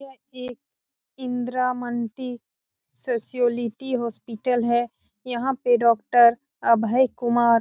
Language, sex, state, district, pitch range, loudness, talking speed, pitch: Hindi, female, Bihar, Saran, 235-255 Hz, -23 LUFS, 95 wpm, 240 Hz